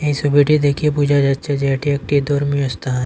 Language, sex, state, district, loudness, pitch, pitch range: Bengali, male, Assam, Hailakandi, -17 LUFS, 145 Hz, 140-145 Hz